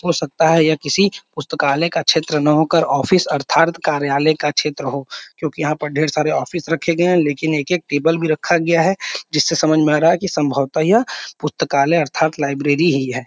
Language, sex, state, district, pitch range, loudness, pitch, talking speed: Hindi, male, Uttar Pradesh, Varanasi, 145-170 Hz, -17 LUFS, 155 Hz, 215 wpm